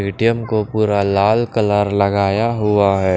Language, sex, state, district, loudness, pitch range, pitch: Hindi, male, Maharashtra, Washim, -16 LUFS, 100-110 Hz, 105 Hz